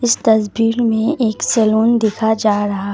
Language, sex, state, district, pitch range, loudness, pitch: Hindi, female, Assam, Kamrup Metropolitan, 215-230 Hz, -15 LUFS, 220 Hz